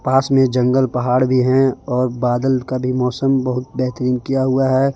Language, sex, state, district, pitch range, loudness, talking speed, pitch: Hindi, male, Jharkhand, Palamu, 125-135 Hz, -17 LUFS, 195 wpm, 130 Hz